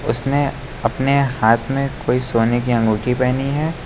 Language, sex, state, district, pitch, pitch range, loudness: Hindi, male, Uttar Pradesh, Lucknow, 125 Hz, 115-140 Hz, -18 LUFS